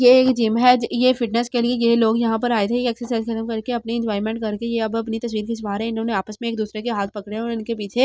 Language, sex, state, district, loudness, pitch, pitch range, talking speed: Hindi, female, Delhi, New Delhi, -21 LUFS, 230 Hz, 220-240 Hz, 300 wpm